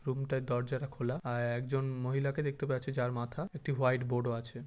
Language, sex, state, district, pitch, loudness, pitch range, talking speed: Bengali, male, West Bengal, Kolkata, 130 Hz, -35 LUFS, 120-135 Hz, 180 wpm